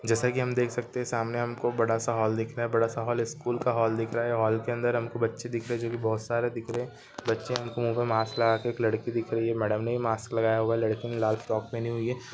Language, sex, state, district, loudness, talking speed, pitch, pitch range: Hindi, male, Rajasthan, Nagaur, -29 LUFS, 315 wpm, 115 Hz, 115-120 Hz